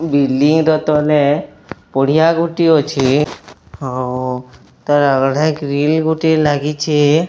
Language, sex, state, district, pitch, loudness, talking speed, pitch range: Odia, male, Odisha, Sambalpur, 150 Hz, -15 LUFS, 90 wpm, 140-155 Hz